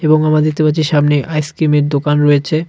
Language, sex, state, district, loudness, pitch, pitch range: Bengali, male, West Bengal, Cooch Behar, -13 LUFS, 155 Hz, 145-155 Hz